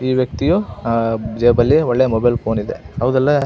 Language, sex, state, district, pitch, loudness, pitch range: Kannada, male, Karnataka, Belgaum, 120 Hz, -17 LUFS, 115-130 Hz